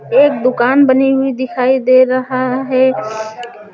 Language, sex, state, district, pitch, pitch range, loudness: Hindi, female, Chhattisgarh, Raipur, 255 Hz, 240-265 Hz, -13 LUFS